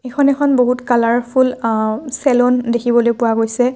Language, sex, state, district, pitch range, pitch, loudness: Assamese, female, Assam, Kamrup Metropolitan, 235-260 Hz, 245 Hz, -15 LUFS